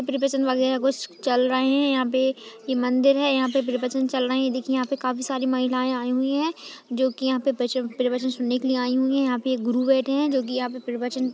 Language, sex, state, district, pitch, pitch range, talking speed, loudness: Hindi, female, Maharashtra, Aurangabad, 260 Hz, 250-270 Hz, 260 wpm, -23 LUFS